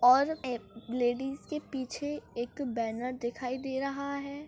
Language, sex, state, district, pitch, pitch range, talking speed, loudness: Hindi, female, Maharashtra, Solapur, 260 Hz, 245-280 Hz, 160 wpm, -33 LUFS